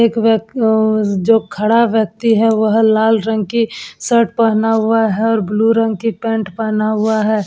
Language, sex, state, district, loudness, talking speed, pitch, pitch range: Hindi, female, Uttar Pradesh, Etah, -14 LUFS, 185 wpm, 220 Hz, 215-225 Hz